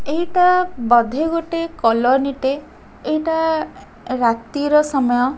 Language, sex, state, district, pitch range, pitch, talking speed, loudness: Odia, female, Odisha, Khordha, 250-325 Hz, 290 Hz, 100 wpm, -18 LUFS